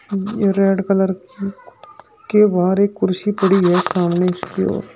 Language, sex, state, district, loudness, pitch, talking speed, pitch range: Hindi, male, Uttar Pradesh, Shamli, -17 LUFS, 195 Hz, 145 wpm, 180-200 Hz